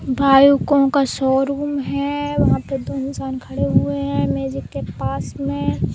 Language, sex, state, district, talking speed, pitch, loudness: Hindi, female, Uttar Pradesh, Jalaun, 170 wpm, 265 Hz, -19 LUFS